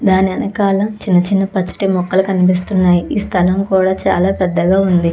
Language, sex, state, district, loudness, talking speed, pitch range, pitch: Telugu, female, Andhra Pradesh, Chittoor, -14 LUFS, 150 wpm, 180-195 Hz, 190 Hz